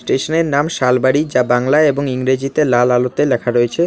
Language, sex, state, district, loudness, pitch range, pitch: Bengali, male, West Bengal, Alipurduar, -15 LUFS, 125-150 Hz, 130 Hz